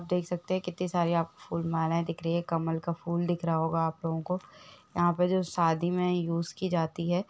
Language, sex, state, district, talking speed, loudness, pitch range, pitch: Hindi, female, Jharkhand, Jamtara, 230 wpm, -30 LUFS, 165-180 Hz, 170 Hz